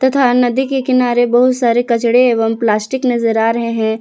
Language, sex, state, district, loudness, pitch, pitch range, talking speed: Hindi, female, Jharkhand, Palamu, -14 LUFS, 240 Hz, 230-255 Hz, 195 wpm